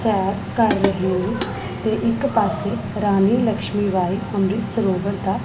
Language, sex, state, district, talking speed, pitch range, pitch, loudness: Punjabi, female, Punjab, Pathankot, 130 wpm, 195-220 Hz, 205 Hz, -20 LUFS